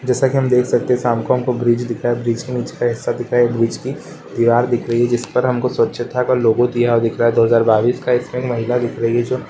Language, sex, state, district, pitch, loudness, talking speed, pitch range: Hindi, male, Uttar Pradesh, Ghazipur, 120 Hz, -17 LUFS, 295 wpm, 115-125 Hz